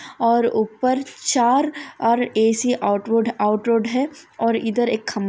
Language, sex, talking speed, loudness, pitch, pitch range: Hindi, female, 135 wpm, -20 LUFS, 235 Hz, 225-255 Hz